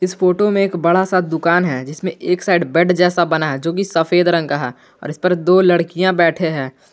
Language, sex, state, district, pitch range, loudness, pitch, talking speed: Hindi, male, Jharkhand, Garhwa, 160-180 Hz, -16 LUFS, 175 Hz, 240 wpm